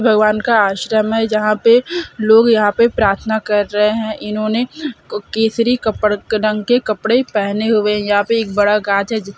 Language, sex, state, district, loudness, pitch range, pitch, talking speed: Hindi, female, Bihar, Saran, -15 LUFS, 210-230 Hz, 215 Hz, 180 wpm